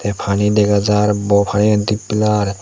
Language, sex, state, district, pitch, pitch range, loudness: Chakma, male, Tripura, Unakoti, 105 Hz, 100-105 Hz, -15 LUFS